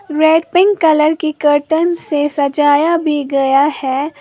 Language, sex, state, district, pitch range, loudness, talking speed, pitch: Hindi, female, Uttar Pradesh, Lalitpur, 290-320 Hz, -13 LUFS, 145 wpm, 300 Hz